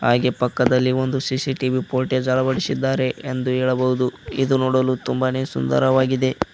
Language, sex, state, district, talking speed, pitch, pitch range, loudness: Kannada, male, Karnataka, Koppal, 110 wpm, 130 Hz, 125-130 Hz, -20 LUFS